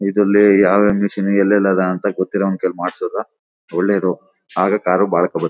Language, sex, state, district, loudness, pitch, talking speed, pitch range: Kannada, male, Karnataka, Chamarajanagar, -16 LUFS, 100 Hz, 150 wpm, 95-100 Hz